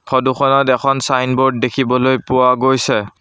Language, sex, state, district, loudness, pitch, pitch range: Assamese, male, Assam, Sonitpur, -14 LUFS, 130 Hz, 130-135 Hz